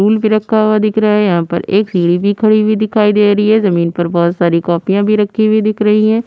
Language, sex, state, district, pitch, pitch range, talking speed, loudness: Hindi, female, Uttar Pradesh, Budaun, 210 Hz, 175-215 Hz, 270 wpm, -12 LUFS